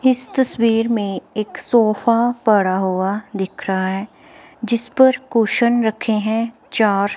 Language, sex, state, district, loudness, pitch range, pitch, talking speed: Hindi, female, Himachal Pradesh, Shimla, -18 LUFS, 200-235 Hz, 225 Hz, 135 wpm